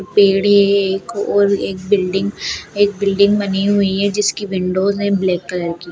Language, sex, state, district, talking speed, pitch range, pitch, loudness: Hindi, female, Bihar, Darbhanga, 170 wpm, 190-205 Hz, 200 Hz, -16 LUFS